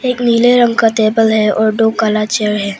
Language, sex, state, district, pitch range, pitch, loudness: Hindi, female, Arunachal Pradesh, Papum Pare, 215-235 Hz, 220 Hz, -12 LUFS